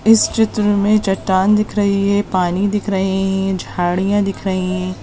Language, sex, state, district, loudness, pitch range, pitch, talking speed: Hindi, female, Goa, North and South Goa, -16 LUFS, 185-205 Hz, 195 Hz, 180 wpm